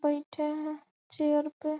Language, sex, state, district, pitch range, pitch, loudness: Hindi, female, Bihar, Gopalganj, 295-305 Hz, 300 Hz, -31 LUFS